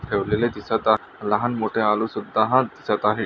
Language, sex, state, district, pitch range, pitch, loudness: Marathi, male, Maharashtra, Nagpur, 105-115 Hz, 110 Hz, -22 LUFS